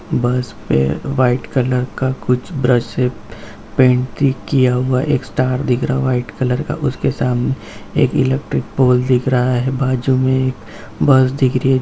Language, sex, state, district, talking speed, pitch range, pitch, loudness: Hindi, male, Bihar, Gaya, 175 wpm, 125-130 Hz, 130 Hz, -17 LUFS